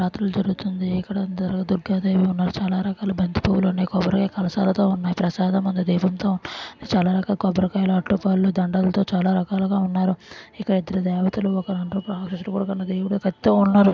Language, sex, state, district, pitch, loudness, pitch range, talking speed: Telugu, female, Andhra Pradesh, Srikakulam, 190 Hz, -22 LUFS, 185-195 Hz, 135 wpm